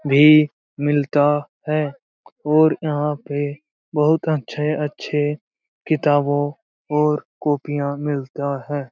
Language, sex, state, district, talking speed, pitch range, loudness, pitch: Hindi, male, Bihar, Jamui, 85 wpm, 145-150 Hz, -20 LUFS, 150 Hz